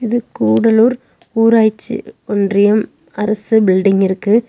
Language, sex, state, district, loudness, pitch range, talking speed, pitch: Tamil, female, Tamil Nadu, Nilgiris, -14 LUFS, 200-225 Hz, 95 wpm, 215 Hz